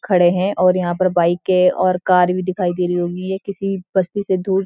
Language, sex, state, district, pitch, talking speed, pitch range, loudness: Hindi, female, Uttarakhand, Uttarkashi, 185 Hz, 245 wpm, 180-190 Hz, -17 LUFS